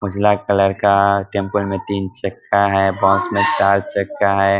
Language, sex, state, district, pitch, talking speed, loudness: Hindi, male, Bihar, Muzaffarpur, 100 Hz, 180 wpm, -17 LUFS